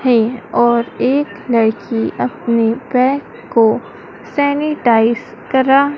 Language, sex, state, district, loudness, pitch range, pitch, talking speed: Hindi, female, Madhya Pradesh, Dhar, -15 LUFS, 230-275 Hz, 240 Hz, 90 wpm